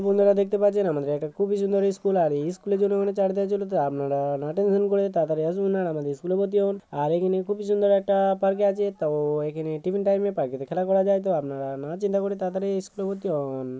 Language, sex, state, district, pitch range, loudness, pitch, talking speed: Bengali, male, West Bengal, Paschim Medinipur, 155-200 Hz, -25 LUFS, 195 Hz, 255 wpm